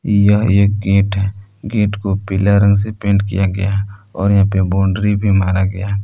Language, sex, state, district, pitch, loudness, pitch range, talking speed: Hindi, male, Jharkhand, Palamu, 100 Hz, -15 LUFS, 95-100 Hz, 210 wpm